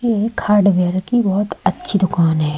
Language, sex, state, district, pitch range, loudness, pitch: Hindi, female, Madhya Pradesh, Umaria, 180-215 Hz, -17 LUFS, 195 Hz